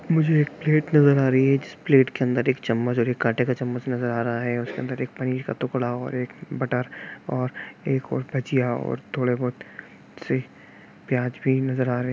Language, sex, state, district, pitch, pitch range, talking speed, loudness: Hindi, male, Jharkhand, Sahebganj, 125 Hz, 125-135 Hz, 215 wpm, -24 LUFS